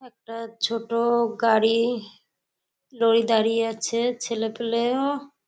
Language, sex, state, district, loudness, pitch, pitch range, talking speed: Bengali, female, West Bengal, Kolkata, -23 LUFS, 230 Hz, 225-240 Hz, 90 wpm